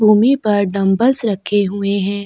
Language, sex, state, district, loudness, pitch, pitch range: Hindi, female, Chhattisgarh, Sukma, -15 LUFS, 205 Hz, 200-215 Hz